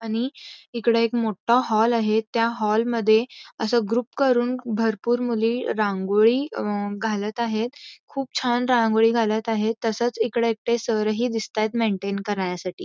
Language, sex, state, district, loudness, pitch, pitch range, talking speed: Marathi, female, Karnataka, Belgaum, -23 LUFS, 225 Hz, 220-240 Hz, 140 wpm